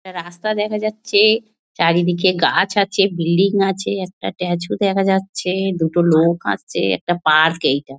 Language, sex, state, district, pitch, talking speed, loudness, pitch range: Bengali, female, West Bengal, North 24 Parganas, 185 Hz, 135 wpm, -17 LUFS, 170-200 Hz